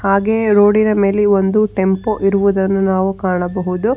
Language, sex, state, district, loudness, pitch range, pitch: Kannada, female, Karnataka, Bangalore, -15 LUFS, 190-210 Hz, 200 Hz